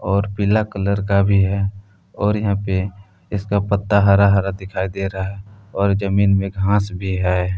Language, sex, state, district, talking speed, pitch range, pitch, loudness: Hindi, male, Jharkhand, Palamu, 180 wpm, 95-100 Hz, 100 Hz, -19 LUFS